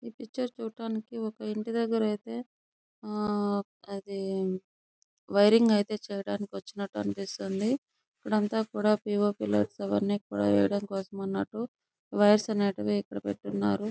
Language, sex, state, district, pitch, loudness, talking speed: Telugu, female, Andhra Pradesh, Chittoor, 205 Hz, -30 LUFS, 120 wpm